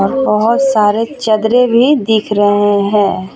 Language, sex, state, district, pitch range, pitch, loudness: Hindi, female, Jharkhand, Ranchi, 205-230 Hz, 210 Hz, -12 LUFS